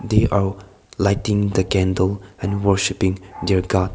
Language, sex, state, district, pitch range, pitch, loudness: English, male, Nagaland, Kohima, 95-100 Hz, 95 Hz, -20 LUFS